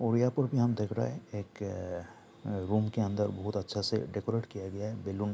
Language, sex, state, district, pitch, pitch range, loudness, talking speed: Hindi, male, Bihar, Saharsa, 105 Hz, 100-115 Hz, -33 LUFS, 245 wpm